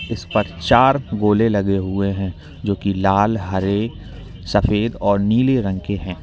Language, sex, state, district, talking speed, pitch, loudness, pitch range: Hindi, male, Uttar Pradesh, Lalitpur, 165 wpm, 100 Hz, -19 LUFS, 95-105 Hz